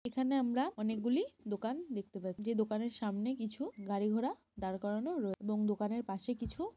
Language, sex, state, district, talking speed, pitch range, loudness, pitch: Bengali, female, West Bengal, Jhargram, 170 wpm, 205-255 Hz, -37 LUFS, 220 Hz